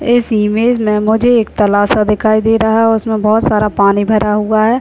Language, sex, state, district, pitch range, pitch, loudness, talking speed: Hindi, male, Uttar Pradesh, Deoria, 210-225 Hz, 215 Hz, -12 LUFS, 210 wpm